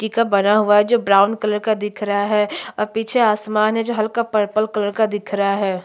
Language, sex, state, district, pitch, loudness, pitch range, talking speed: Hindi, female, Chhattisgarh, Sukma, 210 Hz, -18 LUFS, 205-220 Hz, 245 wpm